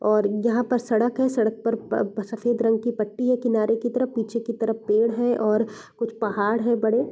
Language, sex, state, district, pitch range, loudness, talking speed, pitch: Hindi, female, Bihar, East Champaran, 220-240 Hz, -23 LUFS, 220 wpm, 230 Hz